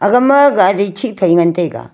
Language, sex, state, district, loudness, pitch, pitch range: Wancho, female, Arunachal Pradesh, Longding, -12 LUFS, 190 Hz, 170-255 Hz